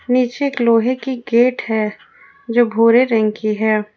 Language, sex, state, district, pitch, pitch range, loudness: Hindi, female, Jharkhand, Ranchi, 235 Hz, 220-250 Hz, -16 LUFS